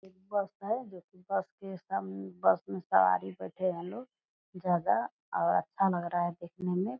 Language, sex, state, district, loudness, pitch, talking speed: Hindi, female, Bihar, Purnia, -32 LUFS, 180 Hz, 180 wpm